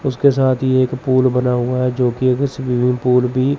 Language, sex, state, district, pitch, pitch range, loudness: Hindi, male, Chandigarh, Chandigarh, 130 Hz, 125-130 Hz, -16 LUFS